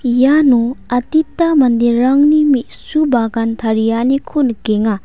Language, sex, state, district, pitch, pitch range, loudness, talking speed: Garo, female, Meghalaya, West Garo Hills, 245 Hz, 230-285 Hz, -14 LUFS, 85 wpm